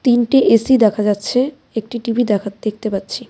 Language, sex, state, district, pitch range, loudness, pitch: Bengali, female, West Bengal, Cooch Behar, 210-245 Hz, -16 LUFS, 225 Hz